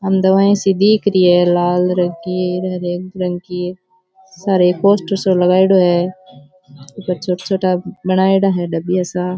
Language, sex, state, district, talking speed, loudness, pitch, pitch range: Rajasthani, male, Rajasthan, Churu, 160 wpm, -15 LUFS, 185 Hz, 180-195 Hz